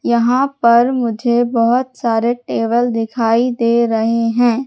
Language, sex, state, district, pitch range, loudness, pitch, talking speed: Hindi, female, Madhya Pradesh, Katni, 230-245 Hz, -15 LUFS, 235 Hz, 130 wpm